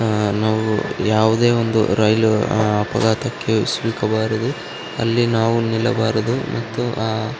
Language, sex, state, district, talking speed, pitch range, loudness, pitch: Kannada, male, Karnataka, Raichur, 95 wpm, 110-115 Hz, -19 LUFS, 110 Hz